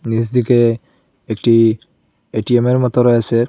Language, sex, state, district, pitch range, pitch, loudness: Bengali, male, Assam, Hailakandi, 115-125 Hz, 120 Hz, -14 LUFS